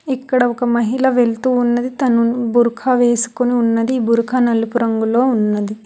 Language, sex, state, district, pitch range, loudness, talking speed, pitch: Telugu, female, Telangana, Hyderabad, 230-250 Hz, -16 LUFS, 135 wpm, 240 Hz